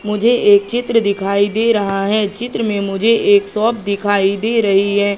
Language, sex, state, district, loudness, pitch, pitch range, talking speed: Hindi, female, Madhya Pradesh, Katni, -15 LUFS, 205 Hz, 200-225 Hz, 185 wpm